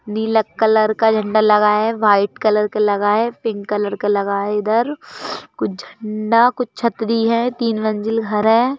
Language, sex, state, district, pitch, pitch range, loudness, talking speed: Hindi, female, Madhya Pradesh, Bhopal, 215 Hz, 210-230 Hz, -17 LUFS, 175 wpm